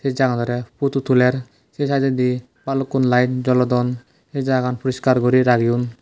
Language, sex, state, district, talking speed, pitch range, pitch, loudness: Chakma, male, Tripura, West Tripura, 170 wpm, 125-135 Hz, 125 Hz, -19 LUFS